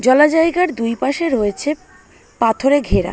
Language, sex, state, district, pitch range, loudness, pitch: Bengali, female, West Bengal, Malda, 235-310 Hz, -16 LUFS, 275 Hz